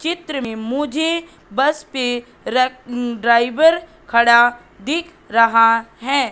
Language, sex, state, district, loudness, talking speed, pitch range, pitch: Hindi, female, Madhya Pradesh, Katni, -17 LUFS, 105 wpm, 235-310 Hz, 255 Hz